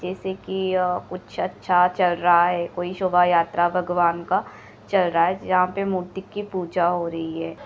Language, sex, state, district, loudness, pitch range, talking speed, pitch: Hindi, female, Bihar, Madhepura, -22 LUFS, 175-185 Hz, 190 wpm, 180 Hz